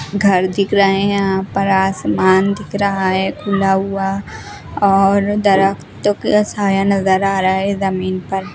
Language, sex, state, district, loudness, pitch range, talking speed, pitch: Hindi, female, Bihar, West Champaran, -15 LUFS, 190-200 Hz, 155 wpm, 195 Hz